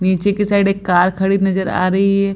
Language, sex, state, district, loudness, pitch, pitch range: Hindi, female, Bihar, Lakhisarai, -16 LUFS, 195 Hz, 185-195 Hz